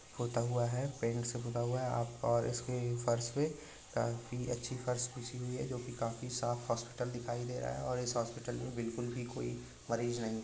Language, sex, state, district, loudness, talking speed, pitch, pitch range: Hindi, male, Uttar Pradesh, Budaun, -38 LUFS, 210 wpm, 120 Hz, 115-125 Hz